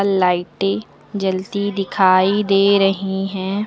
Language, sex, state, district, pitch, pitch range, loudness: Hindi, female, Uttar Pradesh, Lucknow, 195 Hz, 190-200 Hz, -18 LUFS